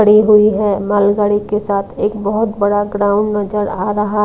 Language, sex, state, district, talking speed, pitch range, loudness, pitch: Hindi, female, Maharashtra, Mumbai Suburban, 195 wpm, 205-210 Hz, -14 LUFS, 210 Hz